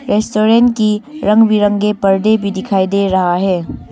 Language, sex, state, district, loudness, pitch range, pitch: Hindi, female, Arunachal Pradesh, Longding, -13 LUFS, 195-215 Hz, 205 Hz